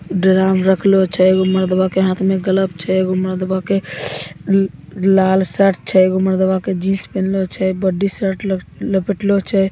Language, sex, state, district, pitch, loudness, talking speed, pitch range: Hindi, female, Bihar, Begusarai, 190 Hz, -16 LUFS, 160 wpm, 185-195 Hz